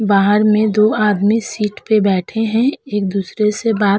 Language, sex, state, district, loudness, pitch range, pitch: Hindi, female, Uttar Pradesh, Hamirpur, -15 LUFS, 205-220 Hz, 210 Hz